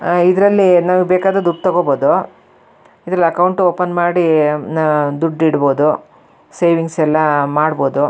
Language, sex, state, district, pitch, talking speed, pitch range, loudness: Kannada, female, Karnataka, Shimoga, 165 Hz, 120 wpm, 150-180 Hz, -14 LUFS